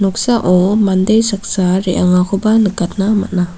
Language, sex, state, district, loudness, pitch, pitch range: Garo, female, Meghalaya, South Garo Hills, -13 LUFS, 195 Hz, 180-215 Hz